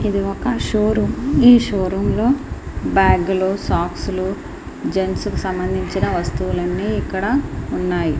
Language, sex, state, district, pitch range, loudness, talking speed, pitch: Telugu, female, Andhra Pradesh, Srikakulam, 185-235 Hz, -19 LUFS, 115 wpm, 195 Hz